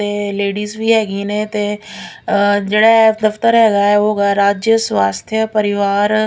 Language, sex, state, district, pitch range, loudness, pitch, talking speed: Punjabi, female, Punjab, Pathankot, 200-220 Hz, -14 LUFS, 210 Hz, 155 wpm